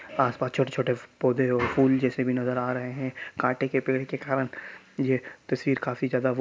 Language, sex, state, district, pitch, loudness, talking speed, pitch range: Hindi, male, Bihar, Sitamarhi, 130 Hz, -27 LUFS, 185 wpm, 125-135 Hz